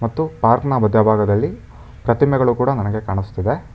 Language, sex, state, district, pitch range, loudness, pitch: Kannada, male, Karnataka, Bangalore, 105-135 Hz, -18 LUFS, 115 Hz